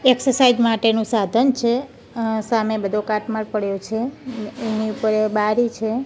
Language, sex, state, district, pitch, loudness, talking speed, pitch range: Gujarati, female, Gujarat, Gandhinagar, 225 Hz, -20 LUFS, 140 wpm, 215-240 Hz